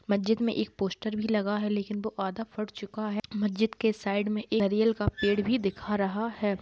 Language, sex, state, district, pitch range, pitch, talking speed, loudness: Hindi, female, Bihar, Purnia, 205-220 Hz, 210 Hz, 225 wpm, -29 LUFS